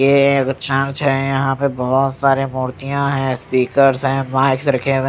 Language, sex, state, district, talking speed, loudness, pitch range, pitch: Hindi, male, Odisha, Nuapada, 175 wpm, -17 LUFS, 135-140 Hz, 135 Hz